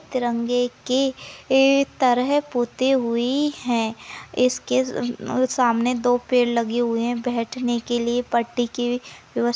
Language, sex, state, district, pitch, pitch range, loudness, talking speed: Hindi, female, Maharashtra, Nagpur, 245 Hz, 235-255 Hz, -22 LUFS, 125 wpm